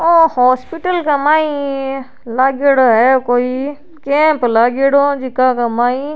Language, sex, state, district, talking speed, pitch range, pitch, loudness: Rajasthani, female, Rajasthan, Churu, 115 wpm, 255-295 Hz, 270 Hz, -14 LUFS